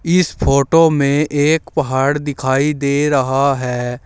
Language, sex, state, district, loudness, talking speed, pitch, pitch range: Hindi, male, Uttar Pradesh, Saharanpur, -15 LUFS, 135 wpm, 140 Hz, 135-150 Hz